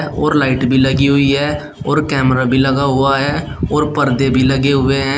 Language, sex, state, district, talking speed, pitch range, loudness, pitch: Hindi, male, Uttar Pradesh, Shamli, 210 wpm, 135-145 Hz, -14 LUFS, 140 Hz